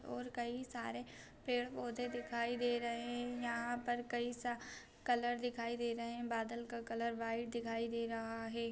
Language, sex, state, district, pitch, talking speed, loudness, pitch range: Hindi, female, Bihar, Araria, 235 Hz, 200 wpm, -41 LUFS, 230-240 Hz